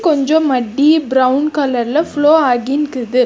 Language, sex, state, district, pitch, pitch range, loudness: Tamil, female, Karnataka, Bangalore, 285 Hz, 255-305 Hz, -14 LUFS